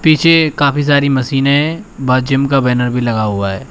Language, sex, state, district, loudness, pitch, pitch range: Hindi, male, Uttar Pradesh, Shamli, -13 LUFS, 135 Hz, 125-145 Hz